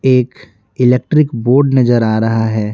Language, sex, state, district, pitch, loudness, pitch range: Hindi, male, Bihar, Patna, 125 Hz, -13 LUFS, 115-130 Hz